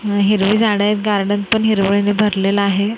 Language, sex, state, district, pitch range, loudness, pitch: Marathi, female, Maharashtra, Mumbai Suburban, 200-210 Hz, -15 LUFS, 205 Hz